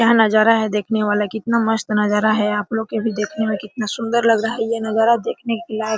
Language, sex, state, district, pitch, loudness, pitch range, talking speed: Hindi, female, Bihar, Araria, 220 Hz, -18 LUFS, 215-230 Hz, 260 wpm